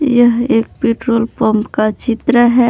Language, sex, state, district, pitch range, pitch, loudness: Hindi, male, Jharkhand, Palamu, 225-240 Hz, 235 Hz, -14 LUFS